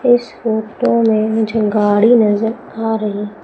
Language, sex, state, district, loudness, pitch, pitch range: Hindi, female, Madhya Pradesh, Umaria, -15 LUFS, 220 Hz, 210-225 Hz